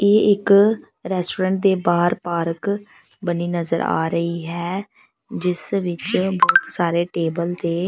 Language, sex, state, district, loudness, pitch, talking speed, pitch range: Punjabi, female, Punjab, Pathankot, -20 LUFS, 180 Hz, 130 wpm, 170-200 Hz